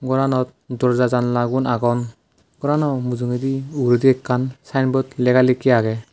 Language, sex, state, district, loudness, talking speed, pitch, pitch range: Chakma, male, Tripura, West Tripura, -19 LUFS, 125 wpm, 125 Hz, 125-130 Hz